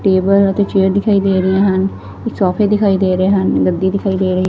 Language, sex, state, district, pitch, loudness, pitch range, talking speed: Punjabi, female, Punjab, Fazilka, 195 Hz, -14 LUFS, 190-200 Hz, 215 wpm